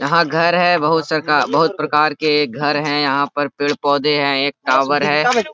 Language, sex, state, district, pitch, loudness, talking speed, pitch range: Hindi, male, Jharkhand, Sahebganj, 150 Hz, -16 LUFS, 185 wpm, 145-155 Hz